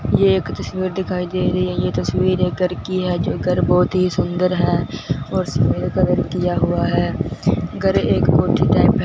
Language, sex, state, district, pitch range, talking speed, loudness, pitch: Hindi, male, Punjab, Fazilka, 175-185 Hz, 200 wpm, -19 LUFS, 180 Hz